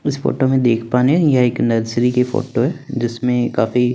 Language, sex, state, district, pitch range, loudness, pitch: Hindi, male, Chandigarh, Chandigarh, 120-130 Hz, -17 LUFS, 125 Hz